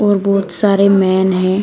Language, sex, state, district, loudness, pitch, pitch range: Hindi, female, Uttar Pradesh, Shamli, -13 LUFS, 195 Hz, 185-200 Hz